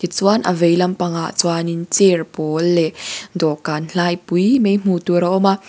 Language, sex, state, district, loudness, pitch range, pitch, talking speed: Mizo, female, Mizoram, Aizawl, -17 LUFS, 170-190 Hz, 175 Hz, 170 wpm